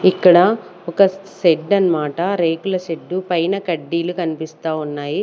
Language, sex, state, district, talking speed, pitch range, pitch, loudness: Telugu, female, Andhra Pradesh, Sri Satya Sai, 115 wpm, 165-185 Hz, 175 Hz, -18 LUFS